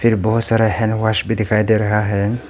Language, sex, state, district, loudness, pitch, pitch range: Hindi, male, Arunachal Pradesh, Papum Pare, -16 LUFS, 110 Hz, 105-115 Hz